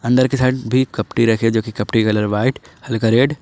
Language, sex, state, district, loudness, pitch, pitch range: Hindi, male, Jharkhand, Ranchi, -17 LUFS, 115 Hz, 110-130 Hz